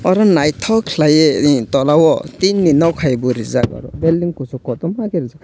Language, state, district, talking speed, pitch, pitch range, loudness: Kokborok, Tripura, West Tripura, 175 wpm, 155 Hz, 135-175 Hz, -15 LUFS